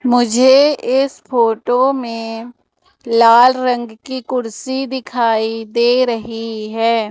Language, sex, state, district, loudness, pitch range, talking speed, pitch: Hindi, female, Madhya Pradesh, Umaria, -15 LUFS, 225-260 Hz, 100 wpm, 240 Hz